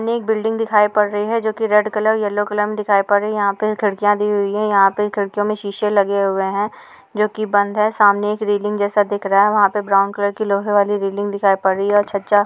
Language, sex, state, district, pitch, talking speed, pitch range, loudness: Hindi, female, Uttar Pradesh, Etah, 205 Hz, 280 wpm, 200-210 Hz, -17 LUFS